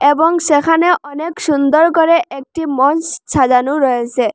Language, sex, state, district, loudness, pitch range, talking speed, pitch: Bengali, female, Assam, Hailakandi, -14 LUFS, 270-330 Hz, 125 wpm, 295 Hz